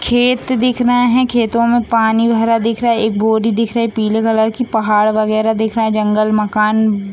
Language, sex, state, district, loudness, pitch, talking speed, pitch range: Hindi, female, Bihar, Gopalganj, -14 LUFS, 225 Hz, 220 wpm, 215-235 Hz